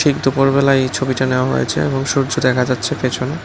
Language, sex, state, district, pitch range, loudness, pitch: Bengali, male, Tripura, West Tripura, 130-135 Hz, -16 LUFS, 135 Hz